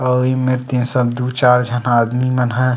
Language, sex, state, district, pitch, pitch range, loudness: Chhattisgarhi, male, Chhattisgarh, Sarguja, 125 Hz, 125-130 Hz, -16 LUFS